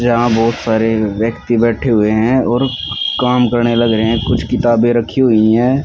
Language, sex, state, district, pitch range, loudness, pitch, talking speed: Hindi, male, Haryana, Rohtak, 110-120 Hz, -14 LUFS, 115 Hz, 175 wpm